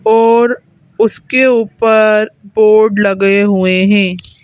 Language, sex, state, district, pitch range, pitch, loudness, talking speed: Hindi, female, Madhya Pradesh, Bhopal, 195-220 Hz, 215 Hz, -11 LUFS, 95 wpm